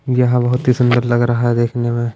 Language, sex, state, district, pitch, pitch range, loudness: Hindi, male, Punjab, Pathankot, 120 Hz, 120-125 Hz, -15 LUFS